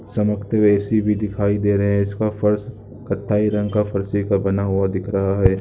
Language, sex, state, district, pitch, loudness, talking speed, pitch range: Hindi, male, Uttarakhand, Uttarkashi, 105 Hz, -20 LUFS, 215 wpm, 100-105 Hz